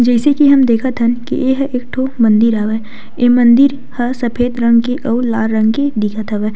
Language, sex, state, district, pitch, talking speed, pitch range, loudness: Chhattisgarhi, female, Chhattisgarh, Sukma, 240 Hz, 210 wpm, 230-260 Hz, -13 LUFS